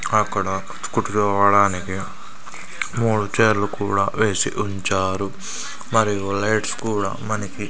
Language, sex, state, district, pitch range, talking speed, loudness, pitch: Telugu, male, Andhra Pradesh, Sri Satya Sai, 100-110 Hz, 85 wpm, -21 LUFS, 100 Hz